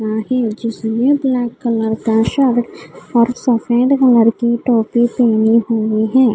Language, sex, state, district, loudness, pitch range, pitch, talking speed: Hindi, female, Odisha, Khordha, -15 LUFS, 225-250 Hz, 235 Hz, 125 wpm